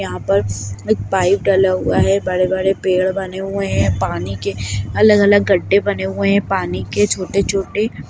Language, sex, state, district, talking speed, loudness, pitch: Hindi, female, Bihar, Jamui, 165 wpm, -17 LUFS, 190 Hz